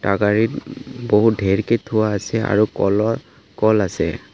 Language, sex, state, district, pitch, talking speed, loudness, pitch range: Assamese, male, Assam, Kamrup Metropolitan, 110 Hz, 140 wpm, -19 LUFS, 105-115 Hz